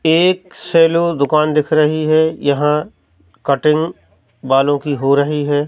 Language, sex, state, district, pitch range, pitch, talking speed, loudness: Hindi, male, Madhya Pradesh, Katni, 140-160 Hz, 150 Hz, 135 wpm, -15 LUFS